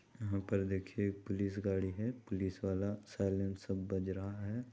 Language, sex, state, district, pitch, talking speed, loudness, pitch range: Hindi, male, Chhattisgarh, Balrampur, 100 Hz, 150 wpm, -39 LUFS, 95-105 Hz